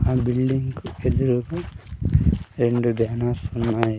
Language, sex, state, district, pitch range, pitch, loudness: Telugu, male, Andhra Pradesh, Sri Satya Sai, 115-130 Hz, 120 Hz, -23 LUFS